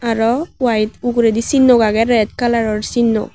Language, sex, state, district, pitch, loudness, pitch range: Chakma, female, Tripura, West Tripura, 230 Hz, -15 LUFS, 220-240 Hz